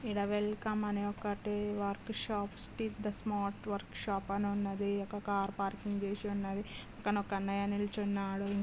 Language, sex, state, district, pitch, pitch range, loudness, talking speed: Telugu, female, Andhra Pradesh, Srikakulam, 205 Hz, 200-210 Hz, -37 LUFS, 155 wpm